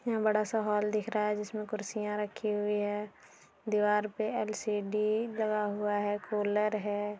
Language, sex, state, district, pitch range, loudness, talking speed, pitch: Hindi, female, Bihar, Darbhanga, 210-215 Hz, -32 LUFS, 165 wpm, 210 Hz